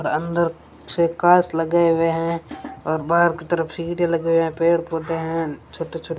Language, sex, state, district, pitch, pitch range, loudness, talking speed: Hindi, female, Rajasthan, Bikaner, 165 Hz, 165-170 Hz, -21 LUFS, 185 wpm